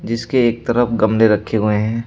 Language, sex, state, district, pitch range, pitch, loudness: Hindi, male, Uttar Pradesh, Shamli, 110-120 Hz, 115 Hz, -16 LUFS